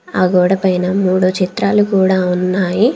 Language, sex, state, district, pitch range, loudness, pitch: Telugu, female, Telangana, Komaram Bheem, 185-195 Hz, -14 LUFS, 185 Hz